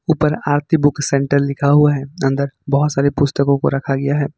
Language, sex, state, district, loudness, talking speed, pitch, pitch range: Hindi, male, Jharkhand, Ranchi, -16 LUFS, 205 wpm, 140 Hz, 140-145 Hz